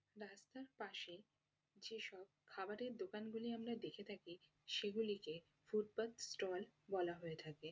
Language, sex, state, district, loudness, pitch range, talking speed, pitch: Bengali, female, West Bengal, North 24 Parganas, -48 LUFS, 170-215 Hz, 110 wpm, 195 Hz